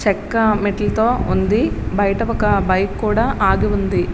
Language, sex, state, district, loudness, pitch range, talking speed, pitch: Telugu, female, Andhra Pradesh, Srikakulam, -17 LUFS, 200-220 Hz, 115 wpm, 205 Hz